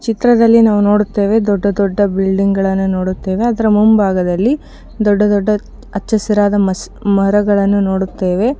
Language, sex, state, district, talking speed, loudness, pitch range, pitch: Kannada, female, Karnataka, Bijapur, 105 wpm, -13 LUFS, 195-215 Hz, 205 Hz